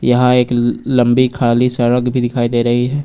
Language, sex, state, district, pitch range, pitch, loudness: Hindi, male, Uttar Pradesh, Lucknow, 120-125 Hz, 125 Hz, -14 LUFS